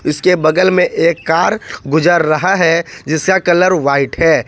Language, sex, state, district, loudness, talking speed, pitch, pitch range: Hindi, male, Jharkhand, Ranchi, -13 LUFS, 160 wpm, 165 Hz, 155-185 Hz